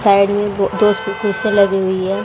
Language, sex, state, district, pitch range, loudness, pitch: Hindi, female, Haryana, Rohtak, 195-210 Hz, -15 LUFS, 200 Hz